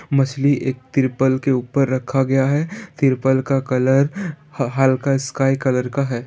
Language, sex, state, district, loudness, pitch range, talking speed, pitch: Hindi, male, Bihar, Saran, -19 LUFS, 130-140 Hz, 165 wpm, 135 Hz